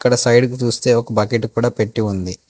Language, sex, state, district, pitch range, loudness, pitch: Telugu, male, Telangana, Hyderabad, 110-120 Hz, -17 LUFS, 115 Hz